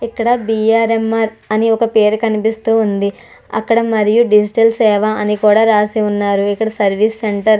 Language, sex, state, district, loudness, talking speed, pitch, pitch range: Telugu, female, Andhra Pradesh, Chittoor, -14 LUFS, 150 wpm, 220 Hz, 210-225 Hz